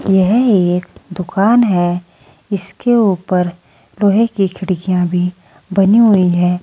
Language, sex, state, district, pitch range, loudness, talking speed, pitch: Hindi, female, Uttar Pradesh, Saharanpur, 175-200 Hz, -14 LUFS, 115 wpm, 185 Hz